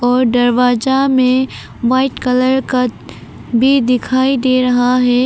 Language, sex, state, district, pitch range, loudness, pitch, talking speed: Hindi, female, Arunachal Pradesh, Papum Pare, 245-260 Hz, -14 LUFS, 255 Hz, 125 wpm